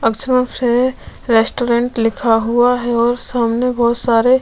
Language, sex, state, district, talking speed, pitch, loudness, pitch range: Hindi, female, Chhattisgarh, Sukma, 150 wpm, 240 Hz, -15 LUFS, 230-250 Hz